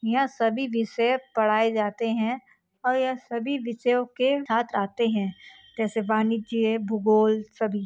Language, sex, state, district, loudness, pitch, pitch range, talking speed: Hindi, female, Chhattisgarh, Bastar, -25 LUFS, 225 Hz, 220-245 Hz, 135 wpm